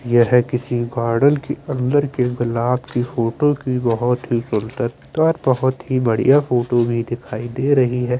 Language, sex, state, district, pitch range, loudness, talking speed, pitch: Hindi, male, Chandigarh, Chandigarh, 120-135 Hz, -19 LUFS, 160 wpm, 125 Hz